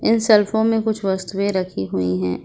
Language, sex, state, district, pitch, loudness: Hindi, female, Jharkhand, Ranchi, 195 Hz, -19 LUFS